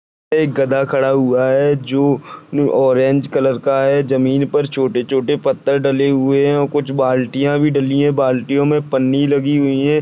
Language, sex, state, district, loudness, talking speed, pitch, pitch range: Hindi, male, Maharashtra, Chandrapur, -15 LUFS, 180 wpm, 140 Hz, 135-145 Hz